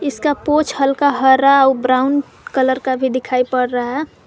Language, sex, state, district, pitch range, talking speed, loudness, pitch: Hindi, female, Jharkhand, Garhwa, 255-285 Hz, 170 wpm, -16 LUFS, 265 Hz